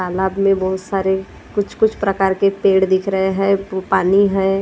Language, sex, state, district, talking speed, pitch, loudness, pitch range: Hindi, female, Maharashtra, Gondia, 170 wpm, 195 Hz, -17 LUFS, 190-195 Hz